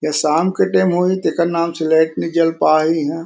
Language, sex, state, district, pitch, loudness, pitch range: Chhattisgarhi, male, Chhattisgarh, Korba, 165 Hz, -16 LUFS, 155-170 Hz